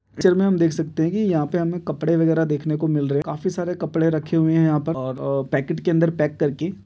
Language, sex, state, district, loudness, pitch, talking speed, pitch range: Hindi, male, Chhattisgarh, Rajnandgaon, -21 LUFS, 160 Hz, 265 wpm, 150-170 Hz